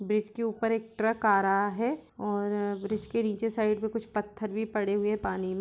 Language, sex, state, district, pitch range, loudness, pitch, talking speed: Hindi, female, Uttar Pradesh, Jalaun, 205-225 Hz, -30 LUFS, 215 Hz, 235 wpm